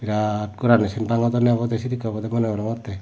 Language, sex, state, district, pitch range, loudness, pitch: Chakma, male, Tripura, Dhalai, 105-120 Hz, -22 LUFS, 115 Hz